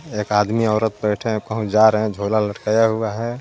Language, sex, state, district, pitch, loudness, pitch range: Hindi, male, Jharkhand, Garhwa, 110 Hz, -19 LUFS, 105-110 Hz